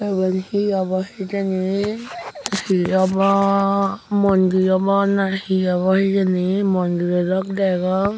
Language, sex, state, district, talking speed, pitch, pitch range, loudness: Chakma, female, Tripura, Unakoti, 110 wpm, 195 Hz, 185-200 Hz, -19 LUFS